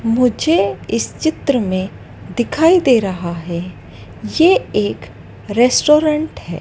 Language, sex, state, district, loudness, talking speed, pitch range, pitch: Hindi, female, Madhya Pradesh, Dhar, -16 LUFS, 110 wpm, 195-315 Hz, 250 Hz